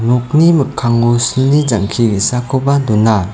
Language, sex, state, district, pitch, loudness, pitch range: Garo, male, Meghalaya, South Garo Hills, 120 Hz, -13 LUFS, 115-140 Hz